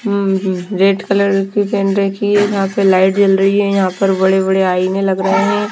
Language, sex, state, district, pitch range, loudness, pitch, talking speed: Hindi, female, Himachal Pradesh, Shimla, 190-200 Hz, -14 LUFS, 195 Hz, 210 wpm